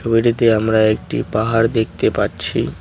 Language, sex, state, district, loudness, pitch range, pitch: Bengali, male, West Bengal, Cooch Behar, -17 LUFS, 110-115 Hz, 110 Hz